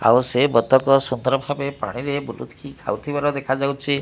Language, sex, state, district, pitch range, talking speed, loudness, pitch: Odia, male, Odisha, Malkangiri, 130-140 Hz, 150 wpm, -20 LUFS, 135 Hz